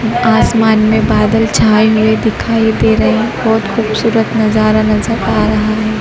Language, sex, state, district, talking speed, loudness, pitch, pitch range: Hindi, female, Madhya Pradesh, Dhar, 170 wpm, -11 LUFS, 220 Hz, 215-225 Hz